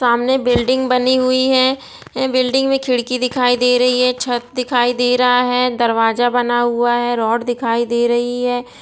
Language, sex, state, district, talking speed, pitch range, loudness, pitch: Hindi, female, Chhattisgarh, Bilaspur, 185 wpm, 240-255 Hz, -16 LUFS, 245 Hz